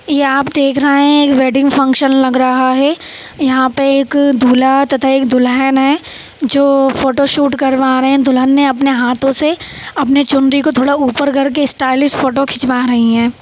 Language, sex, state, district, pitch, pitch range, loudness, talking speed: Hindi, female, Bihar, Saharsa, 275 Hz, 260-280 Hz, -11 LUFS, 170 wpm